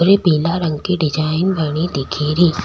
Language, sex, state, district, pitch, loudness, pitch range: Rajasthani, female, Rajasthan, Nagaur, 165 Hz, -17 LUFS, 155-180 Hz